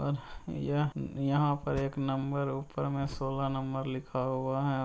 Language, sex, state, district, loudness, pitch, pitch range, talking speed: Hindi, male, Bihar, Muzaffarpur, -33 LUFS, 135 Hz, 135-140 Hz, 160 wpm